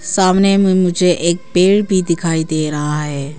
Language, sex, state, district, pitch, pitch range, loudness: Hindi, female, Arunachal Pradesh, Papum Pare, 175 Hz, 155-190 Hz, -14 LUFS